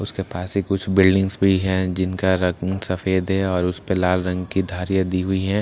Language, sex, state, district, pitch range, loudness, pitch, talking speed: Hindi, male, Bihar, Katihar, 90-95 Hz, -21 LUFS, 95 Hz, 235 wpm